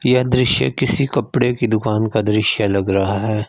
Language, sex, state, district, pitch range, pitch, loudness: Hindi, male, Punjab, Fazilka, 105-125 Hz, 110 Hz, -17 LUFS